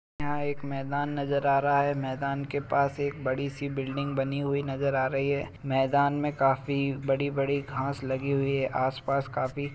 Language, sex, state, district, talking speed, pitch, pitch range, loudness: Hindi, male, Uttar Pradesh, Jalaun, 210 wpm, 140 Hz, 135-140 Hz, -29 LUFS